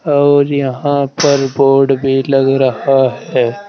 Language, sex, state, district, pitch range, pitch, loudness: Hindi, male, Uttar Pradesh, Saharanpur, 135-145 Hz, 135 Hz, -12 LUFS